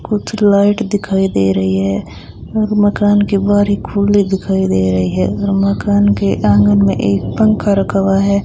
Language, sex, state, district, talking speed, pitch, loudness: Hindi, female, Rajasthan, Bikaner, 185 wpm, 195 Hz, -14 LUFS